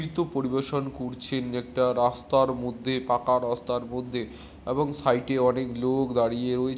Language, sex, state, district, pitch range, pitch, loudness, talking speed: Bengali, male, West Bengal, Dakshin Dinajpur, 120-135 Hz, 125 Hz, -27 LUFS, 135 wpm